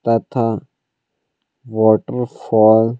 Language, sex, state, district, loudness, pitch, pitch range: Hindi, male, Himachal Pradesh, Shimla, -16 LUFS, 115 Hz, 110-120 Hz